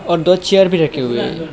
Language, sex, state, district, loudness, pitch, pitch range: Hindi, male, Assam, Hailakandi, -14 LUFS, 170 Hz, 155-185 Hz